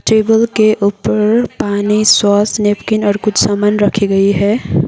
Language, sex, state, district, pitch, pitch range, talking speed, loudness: Hindi, female, Sikkim, Gangtok, 210 Hz, 205-215 Hz, 145 wpm, -12 LUFS